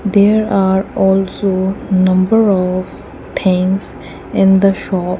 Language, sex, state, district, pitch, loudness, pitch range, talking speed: English, female, Punjab, Kapurthala, 190 Hz, -14 LUFS, 185-200 Hz, 105 wpm